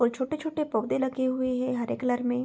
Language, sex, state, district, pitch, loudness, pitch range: Hindi, female, Bihar, Begusarai, 255 Hz, -28 LUFS, 245-265 Hz